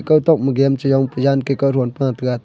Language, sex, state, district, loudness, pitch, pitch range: Wancho, male, Arunachal Pradesh, Longding, -17 LUFS, 135 Hz, 130-140 Hz